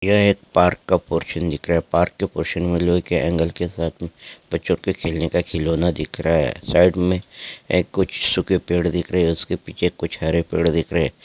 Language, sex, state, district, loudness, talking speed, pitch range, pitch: Hindi, male, Maharashtra, Solapur, -21 LUFS, 225 wpm, 85-90 Hz, 85 Hz